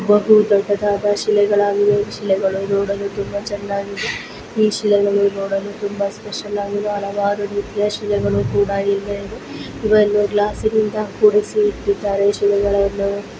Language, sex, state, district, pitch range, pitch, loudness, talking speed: Kannada, female, Karnataka, Belgaum, 200-210 Hz, 205 Hz, -18 LUFS, 95 wpm